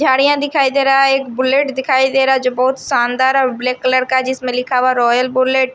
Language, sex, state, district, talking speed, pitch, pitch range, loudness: Hindi, female, Odisha, Sambalpur, 250 wpm, 260 Hz, 255-270 Hz, -14 LUFS